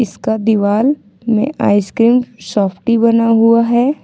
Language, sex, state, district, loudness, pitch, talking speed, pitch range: Hindi, female, Jharkhand, Ranchi, -13 LUFS, 230 Hz, 120 wpm, 215-240 Hz